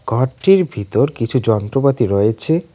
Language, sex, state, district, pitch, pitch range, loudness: Bengali, male, West Bengal, Cooch Behar, 130 Hz, 110-145 Hz, -16 LUFS